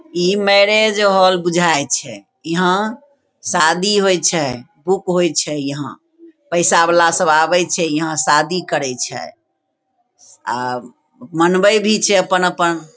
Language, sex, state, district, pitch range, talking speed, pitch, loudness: Maithili, female, Bihar, Begusarai, 160-200 Hz, 125 wpm, 180 Hz, -15 LUFS